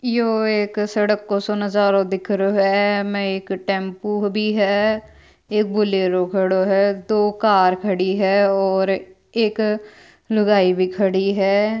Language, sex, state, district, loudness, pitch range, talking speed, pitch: Marwari, female, Rajasthan, Churu, -19 LUFS, 195-210 Hz, 140 wpm, 200 Hz